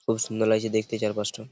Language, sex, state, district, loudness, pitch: Bengali, male, West Bengal, Paschim Medinipur, -26 LUFS, 110 Hz